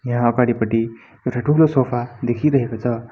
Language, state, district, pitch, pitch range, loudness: Nepali, West Bengal, Darjeeling, 120 Hz, 120-130 Hz, -19 LUFS